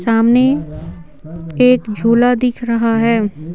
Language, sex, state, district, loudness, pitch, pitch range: Hindi, female, Bihar, Patna, -14 LUFS, 225 Hz, 170-240 Hz